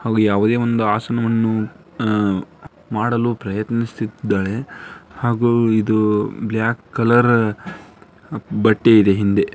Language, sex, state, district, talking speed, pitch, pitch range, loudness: Kannada, male, Karnataka, Dharwad, 100 wpm, 110 Hz, 105-120 Hz, -18 LUFS